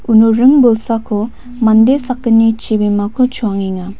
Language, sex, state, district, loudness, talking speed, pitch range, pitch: Garo, female, Meghalaya, West Garo Hills, -12 LUFS, 105 wpm, 215-245 Hz, 225 Hz